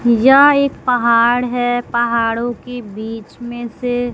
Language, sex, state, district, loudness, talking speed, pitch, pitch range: Hindi, female, Bihar, West Champaran, -15 LUFS, 130 wpm, 240 Hz, 235-245 Hz